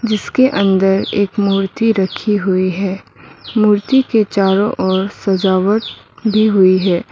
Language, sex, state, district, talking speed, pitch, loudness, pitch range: Hindi, female, Mizoram, Aizawl, 125 wpm, 200 Hz, -14 LUFS, 190-215 Hz